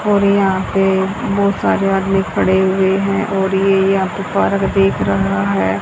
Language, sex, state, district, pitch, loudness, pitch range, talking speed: Hindi, female, Haryana, Jhajjar, 195 Hz, -15 LUFS, 190-195 Hz, 175 wpm